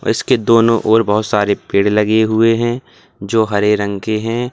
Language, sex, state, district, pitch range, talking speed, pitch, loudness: Hindi, male, Uttar Pradesh, Lalitpur, 105-115 Hz, 200 wpm, 110 Hz, -14 LUFS